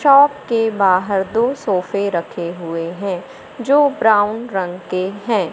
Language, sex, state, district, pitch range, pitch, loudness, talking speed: Hindi, male, Madhya Pradesh, Katni, 185-230 Hz, 200 Hz, -18 LUFS, 140 wpm